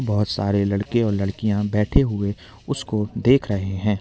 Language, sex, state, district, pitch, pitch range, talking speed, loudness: Hindi, male, Uttar Pradesh, Lalitpur, 105 Hz, 100-105 Hz, 165 wpm, -22 LUFS